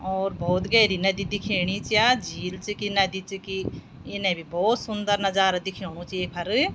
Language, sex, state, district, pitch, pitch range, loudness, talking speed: Garhwali, female, Uttarakhand, Tehri Garhwal, 195 Hz, 185-205 Hz, -24 LUFS, 185 wpm